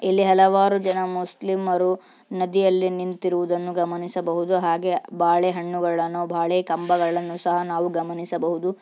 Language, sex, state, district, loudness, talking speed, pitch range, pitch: Kannada, female, Karnataka, Belgaum, -22 LUFS, 95 wpm, 170-185 Hz, 175 Hz